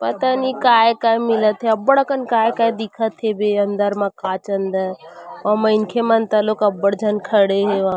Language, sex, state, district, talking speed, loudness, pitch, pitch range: Chhattisgarhi, female, Chhattisgarh, Rajnandgaon, 165 wpm, -18 LUFS, 215 Hz, 200-230 Hz